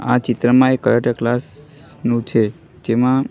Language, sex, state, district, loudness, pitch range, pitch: Gujarati, male, Gujarat, Gandhinagar, -17 LUFS, 120-130 Hz, 125 Hz